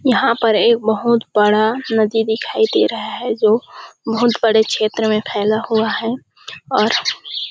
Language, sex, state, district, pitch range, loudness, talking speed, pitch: Hindi, female, Chhattisgarh, Sarguja, 220-235 Hz, -16 LUFS, 145 wpm, 225 Hz